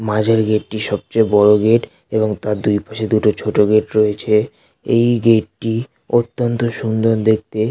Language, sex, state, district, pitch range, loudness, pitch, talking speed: Bengali, male, West Bengal, North 24 Parganas, 105-115 Hz, -16 LUFS, 110 Hz, 165 wpm